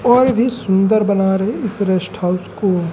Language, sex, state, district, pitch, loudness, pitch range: Hindi, male, Madhya Pradesh, Umaria, 200 Hz, -16 LUFS, 190-225 Hz